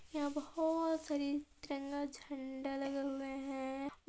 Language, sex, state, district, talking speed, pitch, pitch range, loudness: Hindi, female, Chhattisgarh, Balrampur, 145 wpm, 280 Hz, 275-290 Hz, -40 LUFS